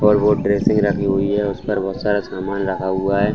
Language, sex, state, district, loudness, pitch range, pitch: Hindi, male, Bihar, Saran, -19 LUFS, 95-105 Hz, 100 Hz